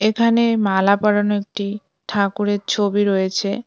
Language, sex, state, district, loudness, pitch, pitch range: Bengali, female, West Bengal, Cooch Behar, -18 LUFS, 205 Hz, 200-210 Hz